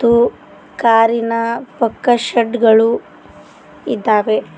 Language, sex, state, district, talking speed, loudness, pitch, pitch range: Kannada, female, Karnataka, Koppal, 90 wpm, -15 LUFS, 230 Hz, 225-235 Hz